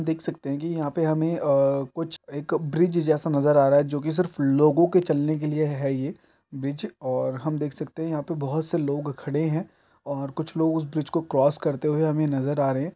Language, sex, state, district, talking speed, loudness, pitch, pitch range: Hindi, male, Chhattisgarh, Bilaspur, 245 wpm, -25 LUFS, 155 Hz, 140-160 Hz